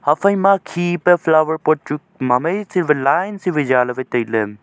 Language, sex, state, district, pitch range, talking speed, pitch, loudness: Wancho, male, Arunachal Pradesh, Longding, 130-180 Hz, 195 wpm, 155 Hz, -17 LUFS